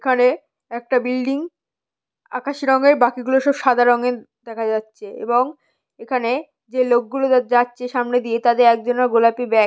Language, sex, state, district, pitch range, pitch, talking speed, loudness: Bengali, female, West Bengal, North 24 Parganas, 240-265 Hz, 250 Hz, 145 wpm, -18 LUFS